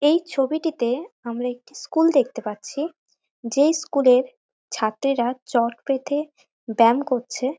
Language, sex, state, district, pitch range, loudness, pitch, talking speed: Bengali, female, West Bengal, North 24 Parganas, 240-300 Hz, -22 LUFS, 265 Hz, 120 wpm